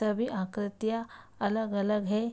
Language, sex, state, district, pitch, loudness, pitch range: Hindi, female, Bihar, Araria, 210 Hz, -31 LUFS, 205-225 Hz